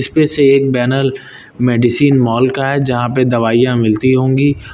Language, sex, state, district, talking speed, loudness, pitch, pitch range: Hindi, male, Uttar Pradesh, Lucknow, 165 wpm, -13 LUFS, 130 Hz, 120-135 Hz